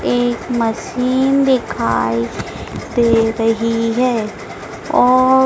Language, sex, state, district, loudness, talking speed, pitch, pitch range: Hindi, female, Madhya Pradesh, Dhar, -16 LUFS, 75 wpm, 230 Hz, 225-255 Hz